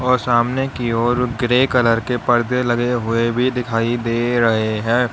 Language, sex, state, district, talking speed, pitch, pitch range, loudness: Hindi, male, Uttar Pradesh, Lalitpur, 175 wpm, 120 Hz, 115-125 Hz, -18 LUFS